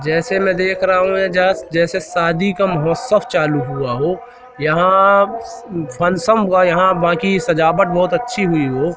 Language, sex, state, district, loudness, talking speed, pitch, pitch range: Hindi, male, Madhya Pradesh, Katni, -15 LUFS, 160 wpm, 185 Hz, 170-195 Hz